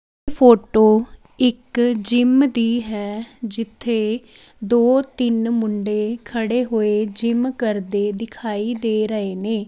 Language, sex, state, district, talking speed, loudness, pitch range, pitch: Punjabi, female, Chandigarh, Chandigarh, 105 wpm, -19 LUFS, 215-240 Hz, 230 Hz